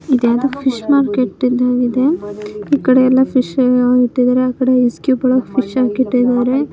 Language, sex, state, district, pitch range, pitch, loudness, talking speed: Kannada, female, Karnataka, Mysore, 245-260 Hz, 255 Hz, -14 LUFS, 145 wpm